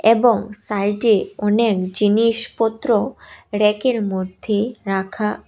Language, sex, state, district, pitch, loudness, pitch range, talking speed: Bengali, female, Tripura, West Tripura, 210 Hz, -19 LUFS, 205-225 Hz, 75 wpm